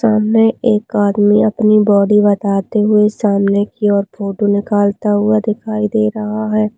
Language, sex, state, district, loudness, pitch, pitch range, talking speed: Hindi, female, Rajasthan, Nagaur, -14 LUFS, 210 Hz, 205-215 Hz, 150 wpm